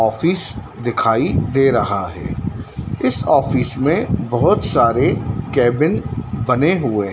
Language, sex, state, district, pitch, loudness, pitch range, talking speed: Hindi, male, Madhya Pradesh, Dhar, 125 Hz, -17 LUFS, 110-150 Hz, 110 wpm